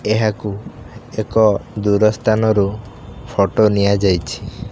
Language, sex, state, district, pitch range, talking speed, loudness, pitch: Odia, male, Odisha, Khordha, 100-110 Hz, 75 wpm, -17 LUFS, 105 Hz